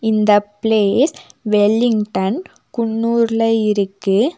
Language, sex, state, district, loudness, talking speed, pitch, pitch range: Tamil, female, Tamil Nadu, Nilgiris, -17 LUFS, 70 wpm, 220 Hz, 205-230 Hz